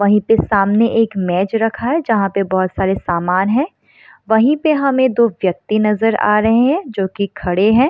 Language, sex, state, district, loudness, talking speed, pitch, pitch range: Hindi, female, Bihar, Samastipur, -15 LUFS, 190 wpm, 215 Hz, 195-235 Hz